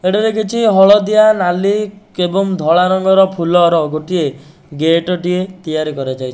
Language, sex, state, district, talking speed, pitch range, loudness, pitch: Odia, male, Odisha, Nuapada, 130 wpm, 165-195 Hz, -13 LUFS, 180 Hz